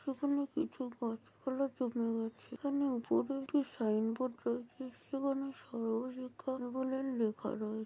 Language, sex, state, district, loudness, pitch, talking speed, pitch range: Bengali, female, West Bengal, Jalpaiguri, -37 LUFS, 255 Hz, 130 wpm, 235-275 Hz